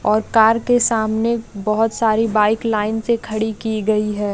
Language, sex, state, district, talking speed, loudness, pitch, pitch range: Hindi, female, Bihar, Jamui, 180 wpm, -18 LUFS, 220 Hz, 215-225 Hz